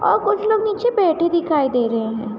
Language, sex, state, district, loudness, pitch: Hindi, female, Uttar Pradesh, Hamirpur, -18 LUFS, 340 Hz